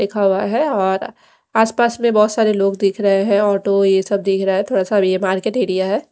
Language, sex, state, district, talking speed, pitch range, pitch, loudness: Hindi, female, Odisha, Malkangiri, 235 wpm, 195-210 Hz, 200 Hz, -16 LUFS